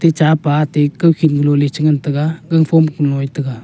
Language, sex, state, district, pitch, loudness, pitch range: Wancho, male, Arunachal Pradesh, Longding, 150 Hz, -14 LUFS, 145-160 Hz